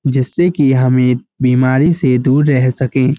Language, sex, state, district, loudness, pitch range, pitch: Hindi, male, Uttar Pradesh, Muzaffarnagar, -13 LUFS, 130-140 Hz, 130 Hz